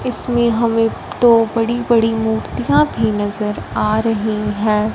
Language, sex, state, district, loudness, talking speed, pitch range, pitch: Hindi, female, Punjab, Fazilka, -16 LUFS, 120 wpm, 210-230 Hz, 225 Hz